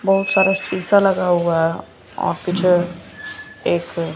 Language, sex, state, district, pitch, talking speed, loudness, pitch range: Hindi, male, Bihar, West Champaran, 180 Hz, 130 wpm, -18 LUFS, 170-195 Hz